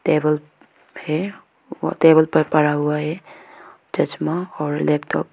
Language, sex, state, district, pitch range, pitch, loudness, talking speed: Hindi, female, Arunachal Pradesh, Lower Dibang Valley, 150-165 Hz, 155 Hz, -20 LUFS, 135 wpm